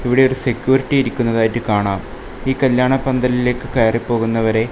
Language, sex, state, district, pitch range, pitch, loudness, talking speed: Malayalam, male, Kerala, Kasaragod, 115-130 Hz, 125 Hz, -17 LUFS, 125 wpm